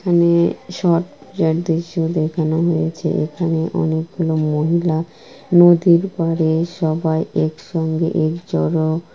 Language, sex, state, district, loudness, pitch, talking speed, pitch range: Bengali, female, West Bengal, Kolkata, -18 LUFS, 165 Hz, 100 wpm, 160-170 Hz